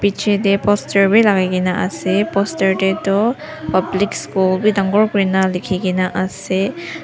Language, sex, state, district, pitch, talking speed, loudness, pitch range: Nagamese, female, Nagaland, Dimapur, 195 Hz, 155 wpm, -16 LUFS, 185-205 Hz